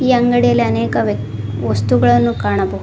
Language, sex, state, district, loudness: Kannada, female, Karnataka, Koppal, -15 LUFS